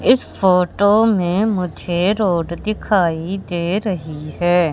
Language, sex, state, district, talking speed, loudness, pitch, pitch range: Hindi, male, Madhya Pradesh, Katni, 115 wpm, -18 LUFS, 180 Hz, 175-205 Hz